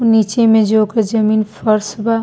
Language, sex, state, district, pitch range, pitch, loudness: Bhojpuri, female, Bihar, East Champaran, 215-225 Hz, 220 Hz, -14 LUFS